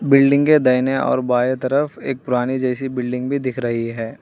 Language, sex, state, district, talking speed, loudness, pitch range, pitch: Hindi, male, Telangana, Hyderabad, 200 wpm, -18 LUFS, 125-135 Hz, 130 Hz